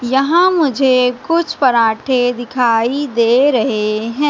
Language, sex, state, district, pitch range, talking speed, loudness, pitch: Hindi, female, Madhya Pradesh, Katni, 235-285 Hz, 110 wpm, -14 LUFS, 250 Hz